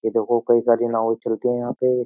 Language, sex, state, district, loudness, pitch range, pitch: Hindi, male, Uttar Pradesh, Jyotiba Phule Nagar, -21 LUFS, 115-120 Hz, 120 Hz